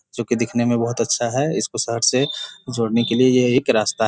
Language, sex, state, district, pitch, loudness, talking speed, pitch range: Hindi, male, Bihar, Kishanganj, 120 Hz, -19 LUFS, 250 wpm, 115-125 Hz